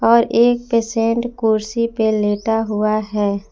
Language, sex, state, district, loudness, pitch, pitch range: Hindi, female, Jharkhand, Palamu, -17 LUFS, 225 Hz, 215-230 Hz